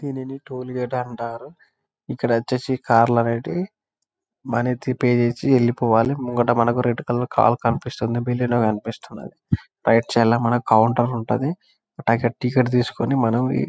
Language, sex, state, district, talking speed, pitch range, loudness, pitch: Telugu, male, Telangana, Karimnagar, 135 wpm, 115-125 Hz, -21 LUFS, 120 Hz